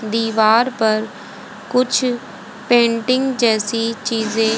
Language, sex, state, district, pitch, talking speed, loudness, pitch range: Hindi, female, Haryana, Jhajjar, 225 Hz, 80 wpm, -17 LUFS, 220-245 Hz